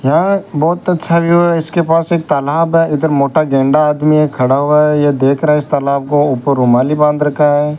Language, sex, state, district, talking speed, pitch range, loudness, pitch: Hindi, male, Rajasthan, Bikaner, 230 wpm, 140-165 Hz, -12 LUFS, 150 Hz